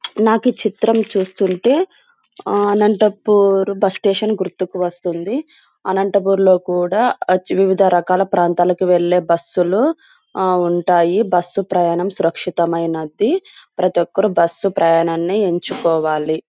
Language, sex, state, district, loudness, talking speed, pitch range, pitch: Telugu, female, Andhra Pradesh, Anantapur, -16 LUFS, 100 wpm, 175-210 Hz, 190 Hz